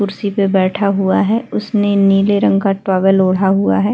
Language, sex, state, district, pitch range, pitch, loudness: Hindi, female, Uttar Pradesh, Hamirpur, 190-205 Hz, 195 Hz, -14 LUFS